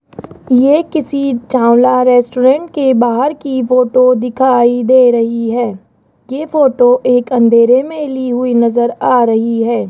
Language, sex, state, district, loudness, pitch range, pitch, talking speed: Hindi, male, Rajasthan, Jaipur, -11 LUFS, 240-265 Hz, 250 Hz, 140 wpm